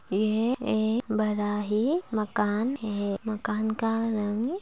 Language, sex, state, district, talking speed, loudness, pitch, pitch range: Hindi, female, Andhra Pradesh, Srikakulam, 80 wpm, -28 LUFS, 215 Hz, 210-230 Hz